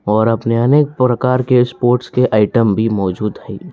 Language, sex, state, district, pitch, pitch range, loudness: Hindi, male, Bihar, Saran, 120 Hz, 105-125 Hz, -14 LUFS